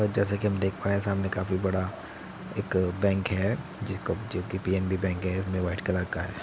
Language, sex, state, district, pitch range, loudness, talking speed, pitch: Hindi, male, Uttar Pradesh, Muzaffarnagar, 95-100 Hz, -29 LUFS, 205 wpm, 95 Hz